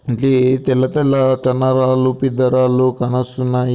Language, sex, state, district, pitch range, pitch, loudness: Telugu, male, Andhra Pradesh, Anantapur, 125-130 Hz, 130 Hz, -15 LUFS